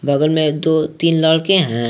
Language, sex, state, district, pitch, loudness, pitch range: Hindi, male, Jharkhand, Garhwa, 155 Hz, -15 LUFS, 150-160 Hz